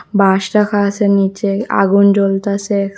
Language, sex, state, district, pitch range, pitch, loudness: Bengali, female, Tripura, West Tripura, 195-205 Hz, 200 Hz, -14 LUFS